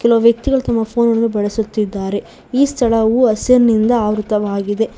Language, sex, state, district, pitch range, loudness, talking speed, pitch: Kannada, female, Karnataka, Bangalore, 210-235 Hz, -15 LUFS, 110 wpm, 225 Hz